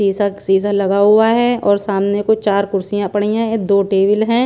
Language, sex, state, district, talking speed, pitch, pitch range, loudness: Hindi, female, Punjab, Pathankot, 200 wpm, 205 Hz, 200-215 Hz, -15 LUFS